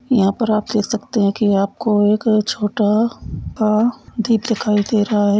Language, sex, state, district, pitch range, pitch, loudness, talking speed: Hindi, female, Goa, North and South Goa, 205-225 Hz, 215 Hz, -17 LUFS, 180 wpm